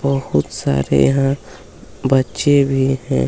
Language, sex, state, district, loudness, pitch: Hindi, male, Chhattisgarh, Kabirdham, -17 LUFS, 135 Hz